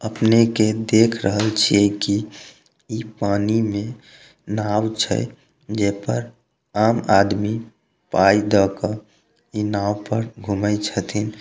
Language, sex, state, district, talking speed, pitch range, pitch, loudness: Maithili, male, Bihar, Samastipur, 105 wpm, 100-110 Hz, 105 Hz, -20 LUFS